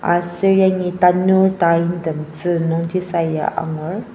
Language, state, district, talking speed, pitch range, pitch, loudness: Ao, Nagaland, Dimapur, 115 wpm, 165-185 Hz, 175 Hz, -17 LUFS